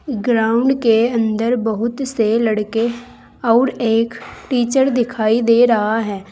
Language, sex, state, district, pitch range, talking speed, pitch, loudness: Hindi, female, Uttar Pradesh, Saharanpur, 225-245 Hz, 125 wpm, 230 Hz, -17 LUFS